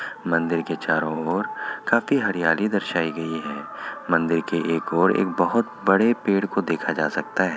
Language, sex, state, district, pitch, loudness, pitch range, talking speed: Hindi, male, Bihar, Kishanganj, 85 Hz, -23 LUFS, 80-100 Hz, 175 wpm